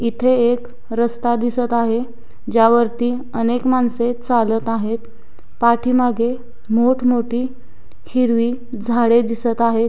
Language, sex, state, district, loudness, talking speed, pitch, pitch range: Marathi, female, Maharashtra, Sindhudurg, -18 LUFS, 105 wpm, 235 Hz, 230-245 Hz